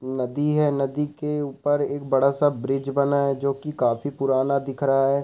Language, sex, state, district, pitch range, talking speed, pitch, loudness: Hindi, male, Chhattisgarh, Raigarh, 135-145 Hz, 185 wpm, 140 Hz, -23 LUFS